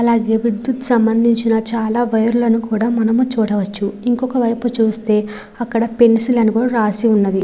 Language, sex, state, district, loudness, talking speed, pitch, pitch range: Telugu, female, Andhra Pradesh, Srikakulam, -15 LUFS, 155 wpm, 230 Hz, 220-240 Hz